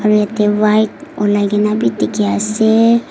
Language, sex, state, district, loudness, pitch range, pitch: Nagamese, female, Nagaland, Kohima, -14 LUFS, 205-215 Hz, 210 Hz